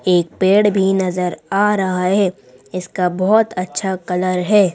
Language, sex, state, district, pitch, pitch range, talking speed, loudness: Hindi, female, Madhya Pradesh, Bhopal, 185 Hz, 180-195 Hz, 150 wpm, -17 LUFS